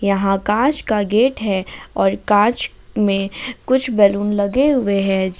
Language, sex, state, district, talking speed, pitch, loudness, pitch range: Hindi, female, Jharkhand, Ranchi, 145 wpm, 205 Hz, -17 LUFS, 195-245 Hz